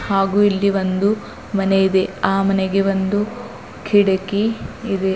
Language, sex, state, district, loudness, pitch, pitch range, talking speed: Kannada, female, Karnataka, Bidar, -18 LUFS, 195 Hz, 195-205 Hz, 115 wpm